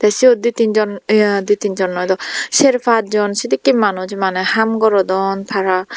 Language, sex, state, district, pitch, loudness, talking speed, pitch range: Chakma, female, Tripura, Dhalai, 205 Hz, -15 LUFS, 170 wpm, 190-225 Hz